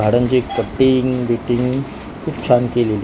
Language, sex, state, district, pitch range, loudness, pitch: Marathi, male, Maharashtra, Mumbai Suburban, 120-130 Hz, -17 LUFS, 125 Hz